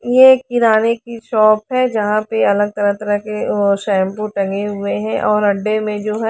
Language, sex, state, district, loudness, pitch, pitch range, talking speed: Hindi, female, Haryana, Rohtak, -16 LUFS, 210 Hz, 205-225 Hz, 210 wpm